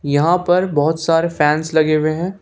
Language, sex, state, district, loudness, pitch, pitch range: Hindi, male, Jharkhand, Ranchi, -16 LUFS, 160 Hz, 155-175 Hz